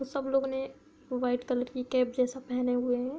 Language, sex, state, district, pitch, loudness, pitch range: Hindi, female, Uttar Pradesh, Hamirpur, 255 Hz, -31 LUFS, 250-270 Hz